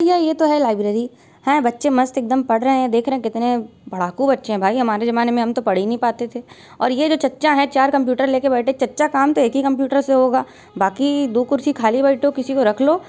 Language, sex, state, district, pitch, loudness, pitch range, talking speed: Hindi, female, Uttar Pradesh, Varanasi, 260 Hz, -18 LUFS, 235-275 Hz, 255 wpm